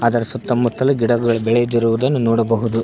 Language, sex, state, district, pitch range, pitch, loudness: Kannada, male, Karnataka, Koppal, 115-120 Hz, 120 Hz, -17 LUFS